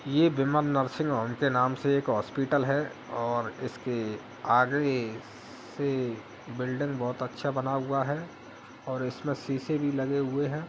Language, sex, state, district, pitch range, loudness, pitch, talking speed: Hindi, male, Uttar Pradesh, Hamirpur, 125-145 Hz, -29 LUFS, 135 Hz, 155 wpm